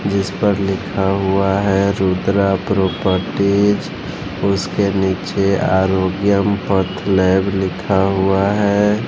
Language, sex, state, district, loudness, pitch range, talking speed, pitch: Hindi, male, Bihar, West Champaran, -17 LUFS, 95-100 Hz, 90 wpm, 95 Hz